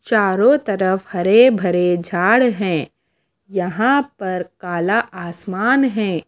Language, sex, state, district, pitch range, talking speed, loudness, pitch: Hindi, female, Bihar, Kaimur, 180-230 Hz, 105 wpm, -17 LUFS, 195 Hz